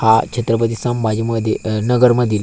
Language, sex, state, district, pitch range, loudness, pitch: Marathi, male, Maharashtra, Aurangabad, 110-120 Hz, -16 LUFS, 115 Hz